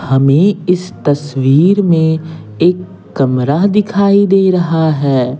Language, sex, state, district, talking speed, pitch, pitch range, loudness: Hindi, male, Bihar, Patna, 110 wpm, 160 Hz, 140-185 Hz, -12 LUFS